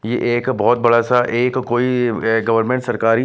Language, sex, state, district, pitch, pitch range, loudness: Hindi, male, Chandigarh, Chandigarh, 120 Hz, 115-125 Hz, -17 LUFS